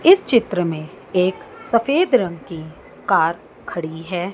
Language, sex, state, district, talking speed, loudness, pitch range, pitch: Hindi, female, Chandigarh, Chandigarh, 140 wpm, -19 LUFS, 165-235 Hz, 180 Hz